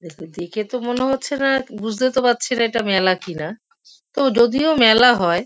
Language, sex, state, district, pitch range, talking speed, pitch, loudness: Bengali, female, West Bengal, Kolkata, 190-255 Hz, 195 wpm, 235 Hz, -18 LUFS